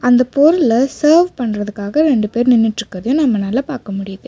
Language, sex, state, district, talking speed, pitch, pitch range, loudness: Tamil, female, Tamil Nadu, Nilgiris, 140 wpm, 245 Hz, 210-280 Hz, -15 LUFS